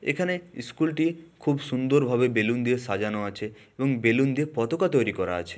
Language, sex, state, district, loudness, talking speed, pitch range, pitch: Bengali, male, West Bengal, Malda, -26 LUFS, 185 wpm, 105-145 Hz, 125 Hz